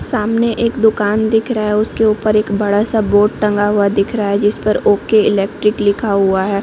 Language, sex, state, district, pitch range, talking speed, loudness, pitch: Hindi, female, Chhattisgarh, Korba, 205-220 Hz, 215 wpm, -14 LUFS, 210 Hz